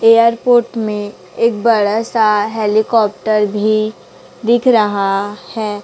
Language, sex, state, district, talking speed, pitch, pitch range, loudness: Hindi, female, Chhattisgarh, Raipur, 105 wpm, 215 Hz, 205-230 Hz, -14 LUFS